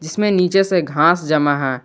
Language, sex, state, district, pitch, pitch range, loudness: Hindi, male, Jharkhand, Garhwa, 160 Hz, 145-185 Hz, -16 LUFS